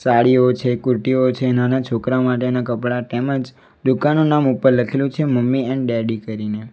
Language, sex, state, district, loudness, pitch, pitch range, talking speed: Gujarati, male, Gujarat, Valsad, -18 LUFS, 125 Hz, 120-130 Hz, 160 wpm